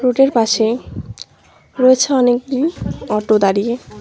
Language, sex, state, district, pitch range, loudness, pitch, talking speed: Bengali, female, West Bengal, Cooch Behar, 220-260 Hz, -15 LUFS, 245 Hz, 105 wpm